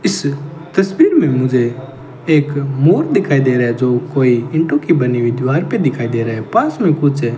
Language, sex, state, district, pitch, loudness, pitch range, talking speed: Hindi, male, Rajasthan, Bikaner, 140 Hz, -15 LUFS, 125-160 Hz, 205 wpm